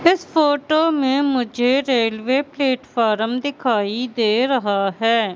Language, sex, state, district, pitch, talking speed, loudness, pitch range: Hindi, female, Madhya Pradesh, Katni, 255 Hz, 110 wpm, -19 LUFS, 225-280 Hz